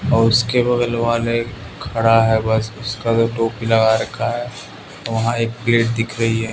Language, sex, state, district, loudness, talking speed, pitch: Hindi, male, Bihar, West Champaran, -18 LUFS, 175 wpm, 115 Hz